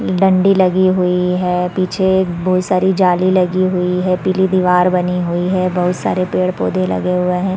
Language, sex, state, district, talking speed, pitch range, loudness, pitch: Hindi, female, Chhattisgarh, Sarguja, 190 wpm, 180-185 Hz, -15 LUFS, 180 Hz